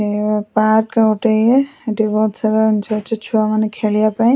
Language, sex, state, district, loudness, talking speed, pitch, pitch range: Odia, female, Odisha, Khordha, -16 LUFS, 150 wpm, 215 Hz, 215-225 Hz